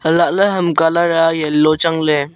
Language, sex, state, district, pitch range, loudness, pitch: Wancho, male, Arunachal Pradesh, Longding, 155-170 Hz, -14 LUFS, 165 Hz